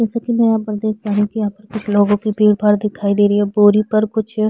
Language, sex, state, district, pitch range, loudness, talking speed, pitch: Hindi, female, Chhattisgarh, Sukma, 205-215 Hz, -16 LUFS, 320 wpm, 210 Hz